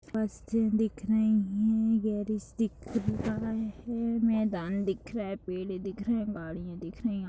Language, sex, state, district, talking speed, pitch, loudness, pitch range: Hindi, female, Uttar Pradesh, Deoria, 190 wpm, 215 Hz, -31 LUFS, 195-225 Hz